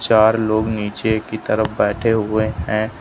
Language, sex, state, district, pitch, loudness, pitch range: Hindi, male, Uttar Pradesh, Lucknow, 110 Hz, -18 LUFS, 105-110 Hz